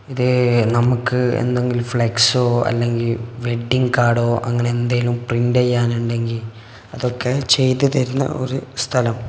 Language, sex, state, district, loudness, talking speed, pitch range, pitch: Malayalam, male, Kerala, Kasaragod, -18 LUFS, 105 wpm, 120-125 Hz, 120 Hz